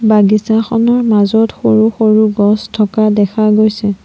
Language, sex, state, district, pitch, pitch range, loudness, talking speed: Assamese, female, Assam, Sonitpur, 215 Hz, 210-220 Hz, -11 LUFS, 120 wpm